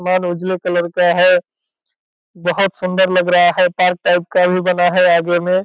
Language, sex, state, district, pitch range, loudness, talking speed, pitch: Hindi, male, Bihar, Purnia, 175-185 Hz, -15 LUFS, 180 wpm, 180 Hz